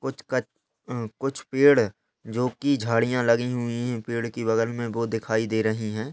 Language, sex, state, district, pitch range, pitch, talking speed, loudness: Hindi, male, Bihar, Lakhisarai, 115-125 Hz, 120 Hz, 185 wpm, -25 LUFS